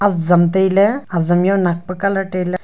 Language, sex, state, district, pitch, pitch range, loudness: Wancho, female, Arunachal Pradesh, Longding, 185 Hz, 175-195 Hz, -16 LUFS